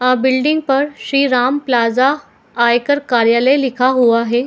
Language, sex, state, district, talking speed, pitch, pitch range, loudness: Hindi, female, Chhattisgarh, Bilaspur, 145 wpm, 255 Hz, 240-275 Hz, -14 LUFS